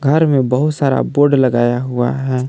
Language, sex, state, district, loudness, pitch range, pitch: Hindi, male, Jharkhand, Palamu, -15 LUFS, 125-145 Hz, 135 Hz